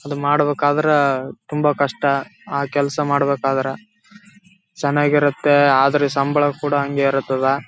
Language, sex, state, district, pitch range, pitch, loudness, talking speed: Kannada, male, Karnataka, Raichur, 140-150 Hz, 145 Hz, -18 LUFS, 95 wpm